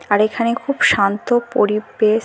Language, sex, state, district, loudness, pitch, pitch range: Bengali, female, West Bengal, North 24 Parganas, -17 LUFS, 220 Hz, 210-240 Hz